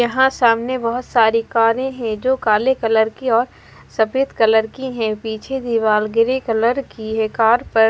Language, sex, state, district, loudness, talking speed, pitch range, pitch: Hindi, female, Punjab, Fazilka, -18 LUFS, 175 wpm, 220-255 Hz, 230 Hz